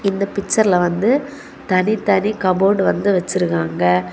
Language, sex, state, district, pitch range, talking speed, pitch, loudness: Tamil, female, Tamil Nadu, Kanyakumari, 180-210 Hz, 115 wpm, 195 Hz, -17 LUFS